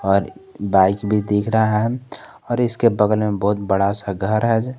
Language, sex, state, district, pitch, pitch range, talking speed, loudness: Hindi, male, Jharkhand, Garhwa, 105 Hz, 100-115 Hz, 190 wpm, -19 LUFS